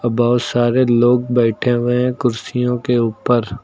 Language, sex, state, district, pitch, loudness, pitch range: Hindi, male, Uttar Pradesh, Lucknow, 120 Hz, -16 LUFS, 120-125 Hz